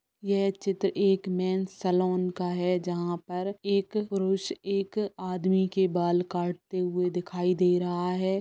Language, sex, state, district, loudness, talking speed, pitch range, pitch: Bhojpuri, female, Bihar, Saran, -28 LUFS, 150 wpm, 180-195 Hz, 185 Hz